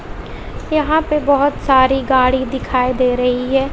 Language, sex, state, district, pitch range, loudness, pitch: Hindi, female, Bihar, West Champaran, 255-285 Hz, -15 LUFS, 265 Hz